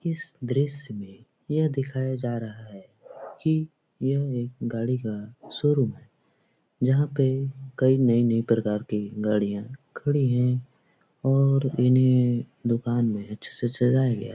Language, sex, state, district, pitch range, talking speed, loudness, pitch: Hindi, male, Bihar, Jahanabad, 115-135 Hz, 135 wpm, -25 LUFS, 125 Hz